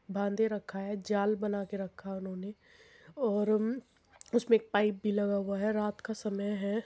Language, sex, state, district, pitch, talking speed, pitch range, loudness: Hindi, female, Uttar Pradesh, Muzaffarnagar, 210 Hz, 175 wpm, 200-220 Hz, -33 LUFS